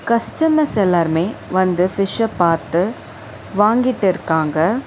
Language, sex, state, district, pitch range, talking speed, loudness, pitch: Tamil, female, Tamil Nadu, Chennai, 165-225 Hz, 75 wpm, -17 LUFS, 185 Hz